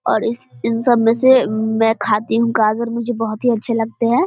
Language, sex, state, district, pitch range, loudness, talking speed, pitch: Hindi, female, Bihar, Vaishali, 220-235 Hz, -17 LUFS, 210 wpm, 230 Hz